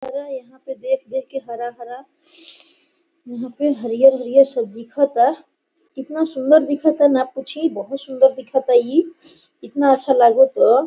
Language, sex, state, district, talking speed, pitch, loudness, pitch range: Hindi, female, Jharkhand, Sahebganj, 145 wpm, 270 Hz, -17 LUFS, 260-305 Hz